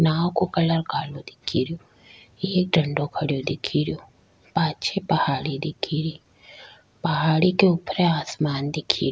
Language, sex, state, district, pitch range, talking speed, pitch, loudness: Rajasthani, female, Rajasthan, Nagaur, 145-170 Hz, 130 wpm, 160 Hz, -24 LUFS